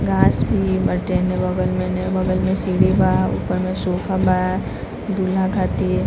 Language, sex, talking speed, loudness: Bhojpuri, female, 130 wpm, -19 LUFS